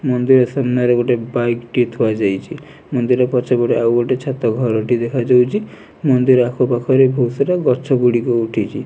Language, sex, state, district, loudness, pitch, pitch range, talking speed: Odia, male, Odisha, Nuapada, -16 LUFS, 125 Hz, 120-130 Hz, 170 wpm